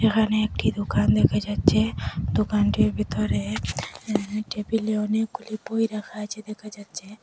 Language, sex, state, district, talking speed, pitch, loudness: Bengali, female, Assam, Hailakandi, 125 wpm, 205 Hz, -25 LUFS